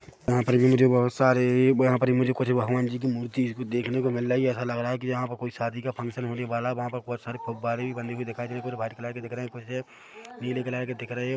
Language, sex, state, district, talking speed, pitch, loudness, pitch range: Hindi, male, Chhattisgarh, Rajnandgaon, 290 wpm, 125 Hz, -27 LUFS, 120-125 Hz